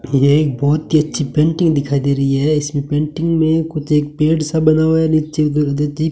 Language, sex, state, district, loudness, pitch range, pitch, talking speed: Hindi, male, Rajasthan, Bikaner, -16 LUFS, 145-160 Hz, 150 Hz, 215 wpm